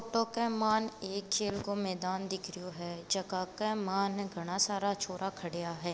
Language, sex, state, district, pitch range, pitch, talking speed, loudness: Marwari, female, Rajasthan, Nagaur, 185-205 Hz, 195 Hz, 180 wpm, -34 LUFS